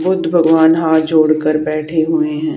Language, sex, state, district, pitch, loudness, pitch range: Hindi, female, Haryana, Charkhi Dadri, 160 Hz, -13 LUFS, 155-175 Hz